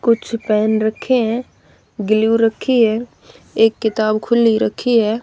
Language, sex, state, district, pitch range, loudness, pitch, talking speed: Hindi, female, Haryana, Rohtak, 220-235 Hz, -16 LUFS, 225 Hz, 140 wpm